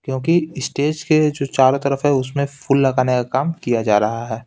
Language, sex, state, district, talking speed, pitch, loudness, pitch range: Hindi, male, Bihar, Patna, 215 wpm, 135 Hz, -18 LUFS, 130-145 Hz